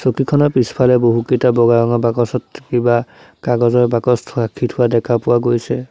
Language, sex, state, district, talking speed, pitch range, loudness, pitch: Assamese, male, Assam, Sonitpur, 130 wpm, 120-125 Hz, -15 LUFS, 120 Hz